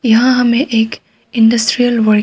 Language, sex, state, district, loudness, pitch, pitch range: Hindi, female, Arunachal Pradesh, Papum Pare, -12 LUFS, 230 Hz, 225-245 Hz